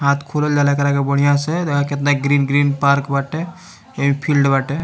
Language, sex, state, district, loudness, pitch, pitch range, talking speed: Bhojpuri, male, Bihar, Muzaffarpur, -17 LUFS, 145 Hz, 140-145 Hz, 210 wpm